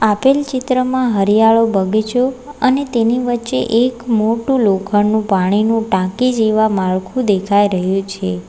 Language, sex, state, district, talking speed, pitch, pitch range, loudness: Gujarati, female, Gujarat, Valsad, 120 wpm, 220 Hz, 200-250 Hz, -15 LUFS